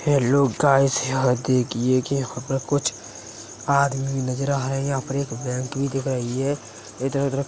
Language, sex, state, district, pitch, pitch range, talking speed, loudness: Hindi, male, Uttar Pradesh, Hamirpur, 135 Hz, 125-140 Hz, 195 wpm, -23 LUFS